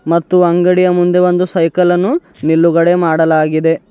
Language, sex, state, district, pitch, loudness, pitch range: Kannada, male, Karnataka, Bidar, 175 Hz, -12 LUFS, 165-180 Hz